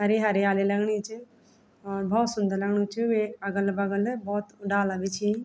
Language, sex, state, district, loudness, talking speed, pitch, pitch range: Garhwali, female, Uttarakhand, Tehri Garhwal, -27 LUFS, 175 wpm, 205 Hz, 200-220 Hz